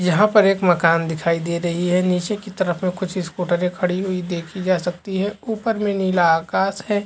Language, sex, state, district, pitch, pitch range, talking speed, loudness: Chhattisgarhi, male, Chhattisgarh, Jashpur, 185 Hz, 175-195 Hz, 210 wpm, -20 LUFS